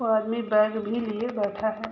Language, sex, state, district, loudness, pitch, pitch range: Hindi, female, Uttar Pradesh, Gorakhpur, -26 LUFS, 220 Hz, 215-225 Hz